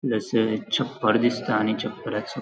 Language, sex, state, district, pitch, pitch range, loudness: Konkani, male, Goa, North and South Goa, 115 Hz, 110-120 Hz, -24 LUFS